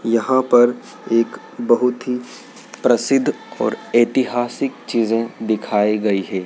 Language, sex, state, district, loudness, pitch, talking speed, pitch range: Hindi, male, Madhya Pradesh, Dhar, -18 LUFS, 120 Hz, 110 wpm, 110-125 Hz